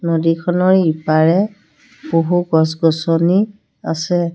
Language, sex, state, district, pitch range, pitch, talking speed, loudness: Assamese, female, Assam, Sonitpur, 165-185 Hz, 170 Hz, 70 wpm, -16 LUFS